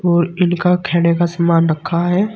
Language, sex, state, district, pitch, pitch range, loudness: Hindi, male, Uttar Pradesh, Saharanpur, 175 Hz, 170-180 Hz, -15 LUFS